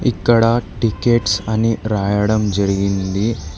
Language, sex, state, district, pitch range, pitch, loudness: Telugu, male, Telangana, Hyderabad, 100-115 Hz, 110 Hz, -17 LUFS